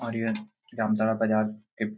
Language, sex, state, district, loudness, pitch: Hindi, male, Jharkhand, Jamtara, -28 LUFS, 110 Hz